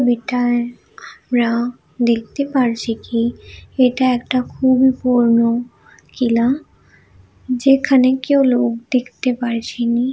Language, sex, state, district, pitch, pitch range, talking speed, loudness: Bengali, female, West Bengal, Malda, 245 Hz, 235-260 Hz, 85 wpm, -17 LUFS